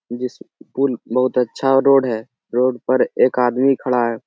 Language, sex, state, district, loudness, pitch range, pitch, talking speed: Hindi, male, Bihar, Jamui, -18 LUFS, 120-130 Hz, 125 Hz, 170 wpm